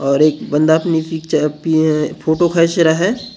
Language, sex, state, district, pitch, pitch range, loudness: Hindi, male, Maharashtra, Gondia, 160 Hz, 155-165 Hz, -15 LUFS